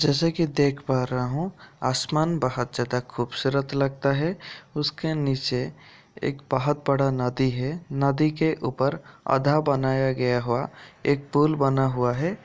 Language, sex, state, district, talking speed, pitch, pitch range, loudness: Hindi, male, Bihar, Kishanganj, 150 wpm, 140 Hz, 130-150 Hz, -25 LUFS